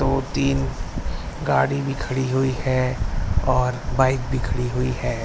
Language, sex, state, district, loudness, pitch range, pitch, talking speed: Hindi, male, Bihar, Begusarai, -23 LUFS, 120-130 Hz, 130 Hz, 150 wpm